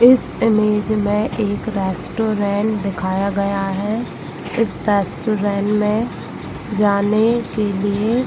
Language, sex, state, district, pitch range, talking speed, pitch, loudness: Hindi, female, Chhattisgarh, Bilaspur, 200-220 Hz, 110 wpm, 210 Hz, -19 LUFS